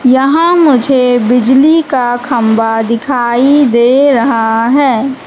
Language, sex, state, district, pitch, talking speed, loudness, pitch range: Hindi, female, Madhya Pradesh, Katni, 255 Hz, 100 wpm, -9 LUFS, 235-280 Hz